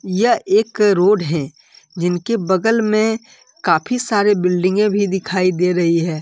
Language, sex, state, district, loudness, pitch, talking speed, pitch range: Hindi, male, Jharkhand, Deoghar, -17 LUFS, 195 Hz, 155 wpm, 180-220 Hz